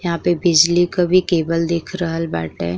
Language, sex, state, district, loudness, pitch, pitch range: Bhojpuri, female, Uttar Pradesh, Ghazipur, -17 LUFS, 170 Hz, 165-175 Hz